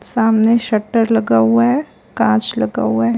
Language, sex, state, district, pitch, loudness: Hindi, female, Chhattisgarh, Raipur, 210 Hz, -15 LUFS